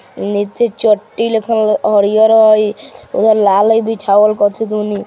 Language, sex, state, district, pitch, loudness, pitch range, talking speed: Hindi, female, Bihar, Vaishali, 215 Hz, -12 LUFS, 205-225 Hz, 130 wpm